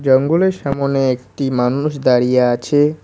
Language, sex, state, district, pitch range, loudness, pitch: Bengali, male, West Bengal, Cooch Behar, 125-145 Hz, -16 LUFS, 135 Hz